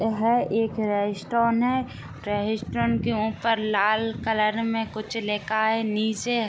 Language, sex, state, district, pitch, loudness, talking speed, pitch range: Hindi, female, Uttar Pradesh, Gorakhpur, 220 Hz, -25 LUFS, 140 wpm, 210-225 Hz